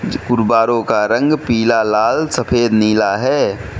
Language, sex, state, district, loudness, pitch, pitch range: Hindi, male, Manipur, Imphal West, -15 LUFS, 115 Hz, 110-120 Hz